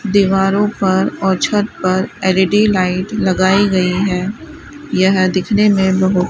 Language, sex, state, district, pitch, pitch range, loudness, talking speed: Hindi, female, Rajasthan, Bikaner, 190 Hz, 185-205 Hz, -14 LUFS, 145 wpm